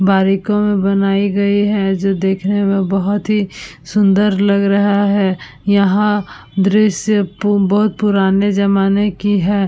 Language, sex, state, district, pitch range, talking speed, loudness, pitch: Hindi, female, Uttar Pradesh, Budaun, 195-205 Hz, 135 wpm, -15 LUFS, 200 Hz